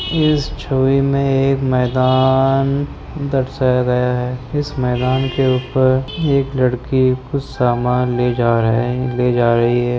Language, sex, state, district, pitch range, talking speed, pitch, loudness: Hindi, male, Bihar, Kishanganj, 125-135 Hz, 130 wpm, 130 Hz, -16 LUFS